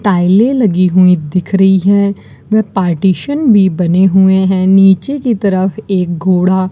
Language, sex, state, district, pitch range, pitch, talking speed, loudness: Hindi, female, Rajasthan, Bikaner, 185-200 Hz, 190 Hz, 160 wpm, -11 LUFS